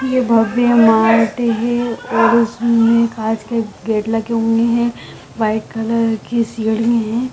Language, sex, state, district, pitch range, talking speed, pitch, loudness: Hindi, female, Bihar, Samastipur, 225-235 Hz, 140 wpm, 230 Hz, -16 LUFS